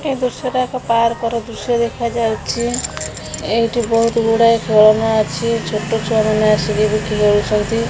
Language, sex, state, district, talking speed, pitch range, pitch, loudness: Odia, female, Odisha, Khordha, 160 wpm, 215-235 Hz, 230 Hz, -16 LUFS